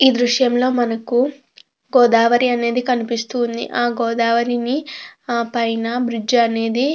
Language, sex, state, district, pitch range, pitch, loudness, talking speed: Telugu, female, Andhra Pradesh, Krishna, 235-250 Hz, 240 Hz, -18 LUFS, 95 wpm